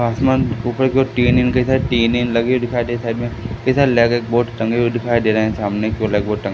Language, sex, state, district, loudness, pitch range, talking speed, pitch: Hindi, male, Madhya Pradesh, Katni, -17 LUFS, 115-125 Hz, 220 wpm, 120 Hz